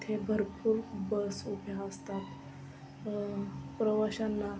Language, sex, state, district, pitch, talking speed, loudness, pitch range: Marathi, female, Maharashtra, Sindhudurg, 205 Hz, 90 wpm, -35 LUFS, 200-215 Hz